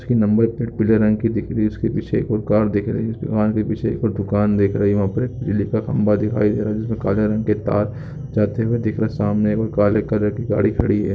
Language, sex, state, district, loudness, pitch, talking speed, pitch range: Hindi, male, Uttarakhand, Uttarkashi, -19 LUFS, 105 Hz, 305 wpm, 105-115 Hz